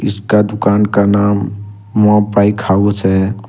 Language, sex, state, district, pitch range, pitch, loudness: Hindi, male, Jharkhand, Ranchi, 100-105 Hz, 100 Hz, -13 LUFS